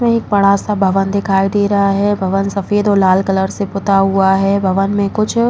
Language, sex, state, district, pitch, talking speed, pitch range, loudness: Hindi, female, Uttar Pradesh, Muzaffarnagar, 200 Hz, 230 wpm, 195-205 Hz, -14 LUFS